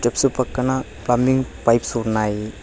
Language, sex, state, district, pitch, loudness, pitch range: Telugu, male, Telangana, Hyderabad, 120 Hz, -20 LUFS, 110-130 Hz